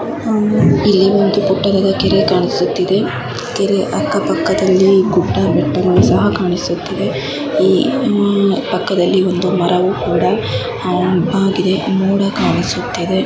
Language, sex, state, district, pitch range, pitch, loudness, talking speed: Kannada, female, Karnataka, Chamarajanagar, 185-200 Hz, 195 Hz, -14 LUFS, 105 wpm